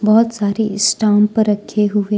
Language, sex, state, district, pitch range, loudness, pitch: Hindi, female, Jharkhand, Deoghar, 210-215 Hz, -15 LUFS, 210 Hz